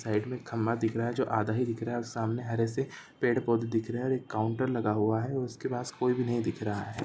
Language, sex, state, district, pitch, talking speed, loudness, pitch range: Hindi, male, Chhattisgarh, Raigarh, 115 Hz, 295 wpm, -31 LUFS, 110-125 Hz